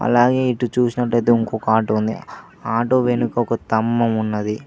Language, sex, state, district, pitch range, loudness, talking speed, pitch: Telugu, male, Telangana, Mahabubabad, 110-120 Hz, -19 LUFS, 155 wpm, 115 Hz